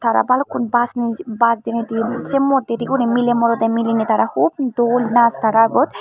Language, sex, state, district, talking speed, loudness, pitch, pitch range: Chakma, female, Tripura, Unakoti, 160 wpm, -17 LUFS, 235 Hz, 230-245 Hz